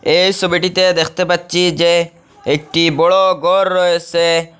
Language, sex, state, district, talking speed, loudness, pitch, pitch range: Bengali, male, Assam, Hailakandi, 115 wpm, -14 LUFS, 175 Hz, 170-185 Hz